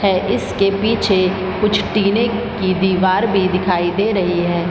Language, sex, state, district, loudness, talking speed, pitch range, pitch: Hindi, female, Bihar, Gopalganj, -16 LUFS, 155 wpm, 185-210 Hz, 190 Hz